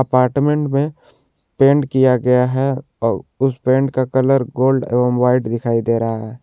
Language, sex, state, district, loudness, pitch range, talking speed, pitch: Hindi, male, Jharkhand, Ranchi, -17 LUFS, 125-135 Hz, 170 wpm, 130 Hz